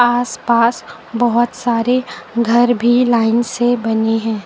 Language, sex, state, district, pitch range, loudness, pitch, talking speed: Hindi, female, Uttar Pradesh, Lucknow, 230-245 Hz, -15 LUFS, 240 Hz, 135 wpm